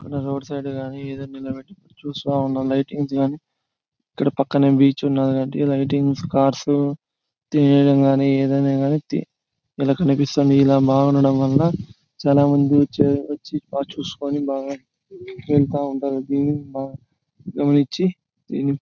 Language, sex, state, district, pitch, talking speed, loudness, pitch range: Telugu, male, Andhra Pradesh, Anantapur, 140 Hz, 100 wpm, -20 LUFS, 135-145 Hz